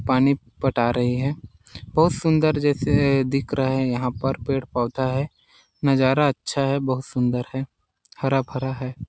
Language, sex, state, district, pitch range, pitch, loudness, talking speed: Hindi, male, Chhattisgarh, Sarguja, 125-140 Hz, 130 Hz, -22 LUFS, 165 wpm